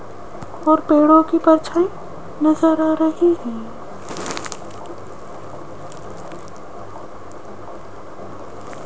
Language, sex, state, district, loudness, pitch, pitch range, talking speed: Hindi, female, Rajasthan, Jaipur, -17 LUFS, 315 Hz, 310-325 Hz, 55 wpm